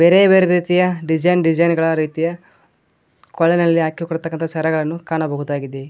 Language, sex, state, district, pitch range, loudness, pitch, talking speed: Kannada, male, Karnataka, Koppal, 160-170 Hz, -17 LUFS, 165 Hz, 110 wpm